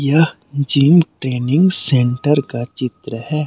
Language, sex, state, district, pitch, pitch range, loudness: Hindi, male, Jharkhand, Deoghar, 140 Hz, 125-155 Hz, -16 LUFS